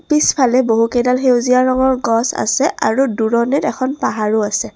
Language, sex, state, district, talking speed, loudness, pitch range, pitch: Assamese, female, Assam, Kamrup Metropolitan, 150 wpm, -15 LUFS, 230-265 Hz, 250 Hz